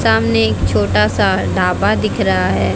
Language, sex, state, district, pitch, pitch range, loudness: Hindi, female, Haryana, Jhajjar, 105 Hz, 95-110 Hz, -15 LUFS